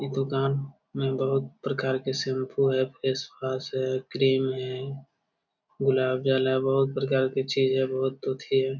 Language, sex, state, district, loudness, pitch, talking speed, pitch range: Hindi, male, Bihar, Jamui, -27 LUFS, 135 Hz, 170 wpm, 130-135 Hz